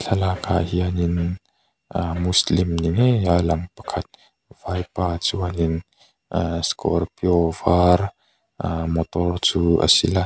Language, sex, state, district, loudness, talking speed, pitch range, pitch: Mizo, male, Mizoram, Aizawl, -21 LUFS, 105 wpm, 85-90 Hz, 90 Hz